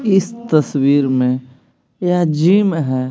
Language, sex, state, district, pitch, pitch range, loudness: Hindi, male, Bihar, Patna, 155 Hz, 130-185 Hz, -16 LUFS